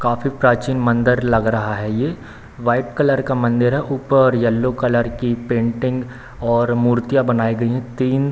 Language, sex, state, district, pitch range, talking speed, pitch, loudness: Hindi, male, Bihar, Samastipur, 120-130 Hz, 165 wpm, 120 Hz, -18 LUFS